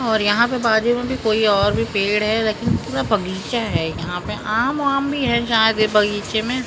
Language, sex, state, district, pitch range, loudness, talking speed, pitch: Hindi, male, Maharashtra, Mumbai Suburban, 205-240 Hz, -19 LUFS, 235 wpm, 220 Hz